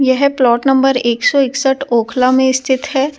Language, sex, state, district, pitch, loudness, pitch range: Hindi, female, Delhi, New Delhi, 265 Hz, -13 LUFS, 255-275 Hz